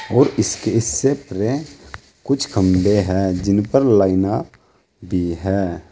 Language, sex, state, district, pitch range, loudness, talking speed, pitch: Hindi, male, Uttar Pradesh, Saharanpur, 95-115 Hz, -18 LUFS, 110 wpm, 100 Hz